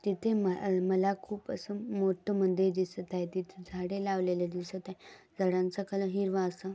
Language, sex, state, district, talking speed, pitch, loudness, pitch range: Marathi, female, Maharashtra, Dhule, 170 wpm, 190 Hz, -32 LUFS, 185-195 Hz